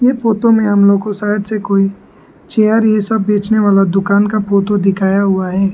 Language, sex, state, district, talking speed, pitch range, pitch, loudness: Hindi, male, Arunachal Pradesh, Lower Dibang Valley, 210 wpm, 195-215 Hz, 205 Hz, -13 LUFS